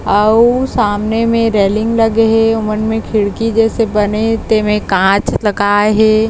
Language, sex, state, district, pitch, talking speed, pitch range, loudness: Chhattisgarhi, female, Chhattisgarh, Bilaspur, 220 Hz, 170 wpm, 210-225 Hz, -13 LUFS